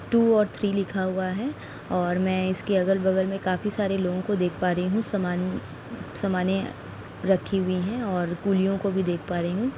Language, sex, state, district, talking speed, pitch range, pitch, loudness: Hindi, female, Uttar Pradesh, Etah, 210 wpm, 185-200 Hz, 190 Hz, -26 LUFS